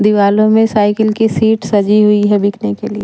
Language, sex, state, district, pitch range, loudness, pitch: Hindi, female, Bihar, Katihar, 205-220 Hz, -12 LUFS, 210 Hz